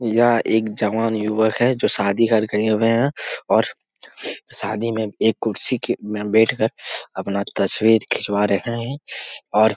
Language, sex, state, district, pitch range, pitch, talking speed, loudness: Hindi, male, Jharkhand, Jamtara, 105-115 Hz, 110 Hz, 165 wpm, -20 LUFS